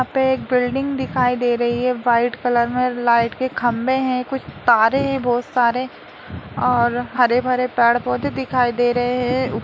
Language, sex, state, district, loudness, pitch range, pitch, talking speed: Hindi, female, Bihar, Lakhisarai, -19 LUFS, 240-255 Hz, 250 Hz, 195 wpm